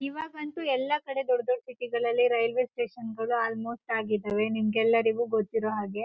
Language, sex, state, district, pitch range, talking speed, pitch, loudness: Kannada, female, Karnataka, Shimoga, 225-275 Hz, 150 wpm, 235 Hz, -28 LUFS